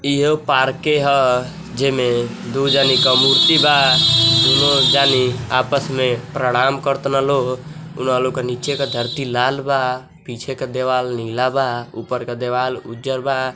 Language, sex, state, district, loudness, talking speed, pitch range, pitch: Bhojpuri, male, Uttar Pradesh, Deoria, -16 LUFS, 155 wpm, 125-140 Hz, 130 Hz